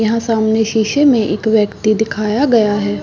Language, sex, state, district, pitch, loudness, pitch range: Hindi, female, Chhattisgarh, Balrampur, 220 Hz, -14 LUFS, 215-225 Hz